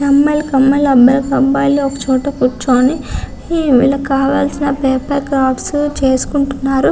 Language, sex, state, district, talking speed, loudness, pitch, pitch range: Telugu, female, Andhra Pradesh, Visakhapatnam, 115 wpm, -13 LUFS, 275 Hz, 265-280 Hz